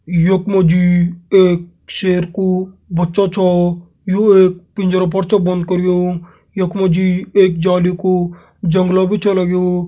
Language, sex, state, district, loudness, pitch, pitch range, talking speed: Garhwali, male, Uttarakhand, Tehri Garhwal, -14 LUFS, 180 Hz, 180-190 Hz, 140 wpm